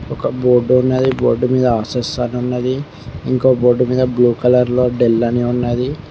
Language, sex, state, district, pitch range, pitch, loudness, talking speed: Telugu, male, Telangana, Mahabubabad, 120-130 Hz, 125 Hz, -15 LUFS, 165 wpm